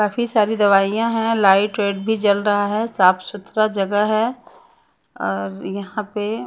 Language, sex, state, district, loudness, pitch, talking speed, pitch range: Hindi, female, Punjab, Pathankot, -19 LUFS, 210 Hz, 165 wpm, 195-220 Hz